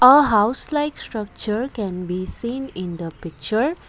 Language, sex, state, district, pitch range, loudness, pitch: English, female, Assam, Kamrup Metropolitan, 185-265 Hz, -22 LUFS, 220 Hz